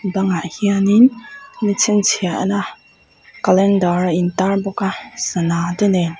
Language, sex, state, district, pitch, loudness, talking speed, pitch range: Mizo, female, Mizoram, Aizawl, 195 Hz, -17 LUFS, 135 wpm, 180-205 Hz